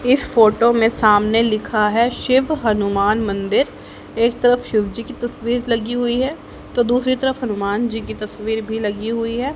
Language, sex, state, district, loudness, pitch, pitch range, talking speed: Hindi, female, Haryana, Jhajjar, -18 LUFS, 230 Hz, 215-245 Hz, 175 wpm